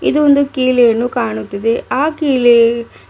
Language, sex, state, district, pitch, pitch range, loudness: Kannada, female, Karnataka, Bidar, 245 Hz, 230-280 Hz, -13 LUFS